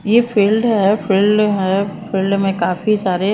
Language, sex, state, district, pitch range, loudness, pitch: Hindi, female, Chandigarh, Chandigarh, 195-215 Hz, -16 LUFS, 200 Hz